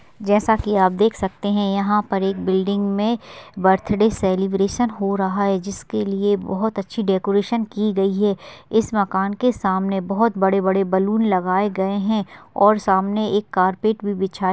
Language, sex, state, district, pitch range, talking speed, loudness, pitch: Hindi, female, Chhattisgarh, Kabirdham, 195-210 Hz, 170 wpm, -20 LUFS, 200 Hz